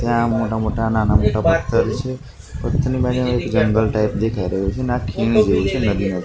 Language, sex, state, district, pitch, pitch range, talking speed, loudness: Gujarati, male, Gujarat, Gandhinagar, 110 Hz, 105-120 Hz, 200 wpm, -19 LUFS